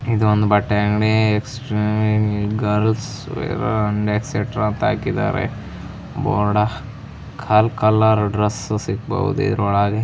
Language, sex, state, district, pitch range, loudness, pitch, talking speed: Kannada, female, Karnataka, Raichur, 105-115 Hz, -19 LUFS, 105 Hz, 110 wpm